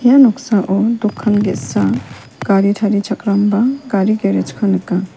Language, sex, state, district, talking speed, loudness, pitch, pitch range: Garo, female, Meghalaya, West Garo Hills, 115 wpm, -15 LUFS, 205 Hz, 195-225 Hz